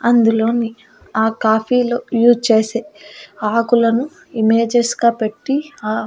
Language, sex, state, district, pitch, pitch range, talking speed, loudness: Telugu, female, Andhra Pradesh, Annamaya, 230 Hz, 220-240 Hz, 90 wpm, -16 LUFS